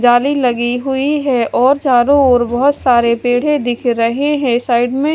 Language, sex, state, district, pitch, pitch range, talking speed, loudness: Hindi, female, Haryana, Charkhi Dadri, 250 Hz, 240-280 Hz, 185 wpm, -13 LUFS